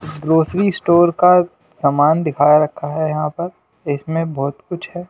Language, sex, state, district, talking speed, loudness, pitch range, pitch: Hindi, male, Delhi, New Delhi, 155 wpm, -16 LUFS, 150-175 Hz, 160 Hz